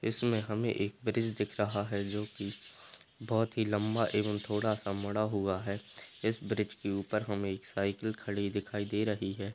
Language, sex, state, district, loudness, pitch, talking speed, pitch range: Hindi, male, Bihar, Lakhisarai, -34 LUFS, 105 Hz, 190 wpm, 100-110 Hz